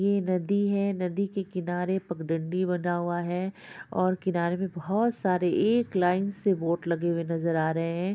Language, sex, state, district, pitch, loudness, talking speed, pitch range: Hindi, female, Bihar, Purnia, 180 Hz, -28 LUFS, 200 wpm, 170-195 Hz